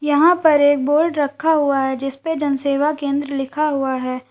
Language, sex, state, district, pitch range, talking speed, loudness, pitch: Hindi, female, Uttar Pradesh, Lalitpur, 275-305 Hz, 210 wpm, -18 LUFS, 285 Hz